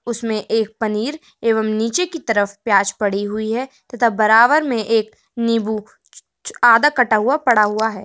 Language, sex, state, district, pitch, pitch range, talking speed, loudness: Hindi, female, Uttar Pradesh, Muzaffarnagar, 225 Hz, 215-240 Hz, 165 wpm, -17 LUFS